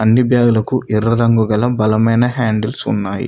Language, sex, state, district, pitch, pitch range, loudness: Telugu, male, Telangana, Mahabubabad, 115 Hz, 110-120 Hz, -15 LUFS